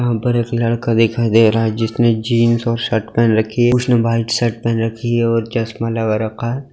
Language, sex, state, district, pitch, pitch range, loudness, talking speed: Hindi, male, Bihar, Muzaffarpur, 115 Hz, 115-120 Hz, -16 LUFS, 230 wpm